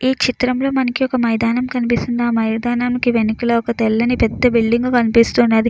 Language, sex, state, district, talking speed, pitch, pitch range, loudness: Telugu, female, Andhra Pradesh, Chittoor, 145 wpm, 240 Hz, 230-250 Hz, -16 LUFS